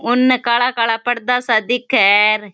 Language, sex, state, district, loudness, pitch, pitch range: Rajasthani, female, Rajasthan, Churu, -15 LUFS, 240 Hz, 220-250 Hz